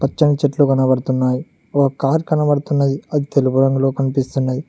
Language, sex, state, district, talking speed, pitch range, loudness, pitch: Telugu, male, Telangana, Mahabubabad, 130 wpm, 135-145 Hz, -17 LUFS, 135 Hz